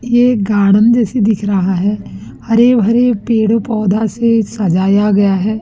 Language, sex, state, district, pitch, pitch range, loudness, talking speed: Hindi, female, Chhattisgarh, Raipur, 220 Hz, 200-230 Hz, -12 LUFS, 150 wpm